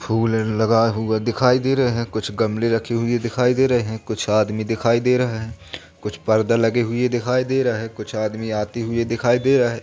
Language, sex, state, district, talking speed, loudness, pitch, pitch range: Hindi, male, Madhya Pradesh, Katni, 225 wpm, -20 LUFS, 115 Hz, 110-120 Hz